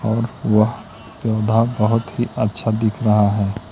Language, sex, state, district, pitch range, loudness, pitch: Hindi, male, Madhya Pradesh, Katni, 105-115 Hz, -19 LUFS, 110 Hz